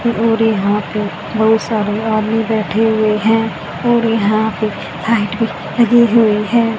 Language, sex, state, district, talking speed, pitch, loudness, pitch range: Hindi, female, Haryana, Rohtak, 150 wpm, 220 Hz, -15 LUFS, 215-225 Hz